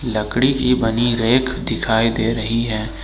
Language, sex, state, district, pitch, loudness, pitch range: Hindi, male, Jharkhand, Ranchi, 115 Hz, -17 LUFS, 110-125 Hz